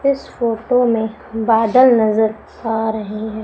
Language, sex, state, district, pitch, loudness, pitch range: Hindi, female, Madhya Pradesh, Umaria, 225 Hz, -16 LUFS, 220-240 Hz